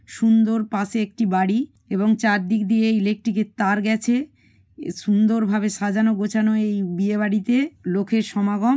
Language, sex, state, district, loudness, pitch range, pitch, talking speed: Bengali, female, West Bengal, Malda, -21 LUFS, 205-225 Hz, 215 Hz, 135 wpm